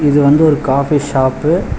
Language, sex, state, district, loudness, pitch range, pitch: Tamil, male, Tamil Nadu, Chennai, -13 LUFS, 135-150 Hz, 145 Hz